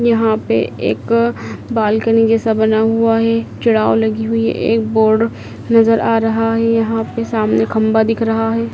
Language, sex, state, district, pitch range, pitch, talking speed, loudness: Hindi, female, Madhya Pradesh, Dhar, 220-230 Hz, 225 Hz, 170 wpm, -15 LUFS